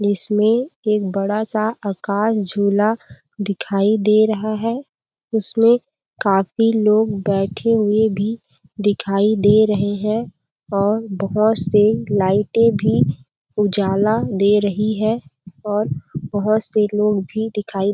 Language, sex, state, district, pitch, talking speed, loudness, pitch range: Hindi, female, Chhattisgarh, Balrampur, 210 Hz, 115 wpm, -18 LUFS, 195-215 Hz